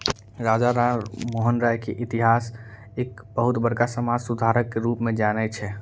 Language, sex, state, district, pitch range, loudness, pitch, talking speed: Angika, male, Bihar, Bhagalpur, 110-120 Hz, -24 LUFS, 115 Hz, 165 wpm